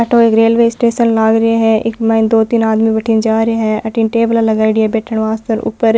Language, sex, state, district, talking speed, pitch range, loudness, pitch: Marwari, female, Rajasthan, Nagaur, 260 wpm, 220-230 Hz, -13 LUFS, 225 Hz